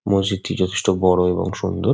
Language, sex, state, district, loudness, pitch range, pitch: Bengali, male, West Bengal, Kolkata, -20 LUFS, 90-100 Hz, 95 Hz